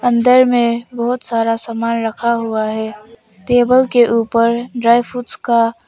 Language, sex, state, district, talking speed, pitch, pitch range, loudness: Hindi, female, Arunachal Pradesh, Papum Pare, 145 wpm, 235 Hz, 230-245 Hz, -15 LUFS